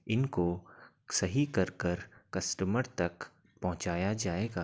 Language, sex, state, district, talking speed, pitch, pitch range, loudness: Hindi, male, Uttar Pradesh, Gorakhpur, 90 wpm, 95 Hz, 90-110 Hz, -33 LUFS